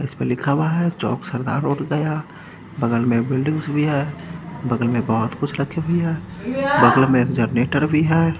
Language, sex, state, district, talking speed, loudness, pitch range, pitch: Hindi, male, Haryana, Charkhi Dadri, 185 wpm, -20 LUFS, 125-160 Hz, 145 Hz